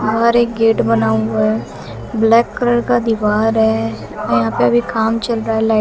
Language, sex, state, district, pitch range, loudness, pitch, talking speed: Hindi, female, Haryana, Jhajjar, 210-230 Hz, -15 LUFS, 220 Hz, 205 wpm